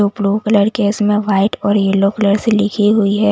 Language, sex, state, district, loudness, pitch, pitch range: Hindi, female, Delhi, New Delhi, -14 LUFS, 205 Hz, 200-210 Hz